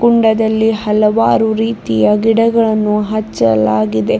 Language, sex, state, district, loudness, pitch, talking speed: Kannada, female, Karnataka, Bidar, -13 LUFS, 215 Hz, 70 wpm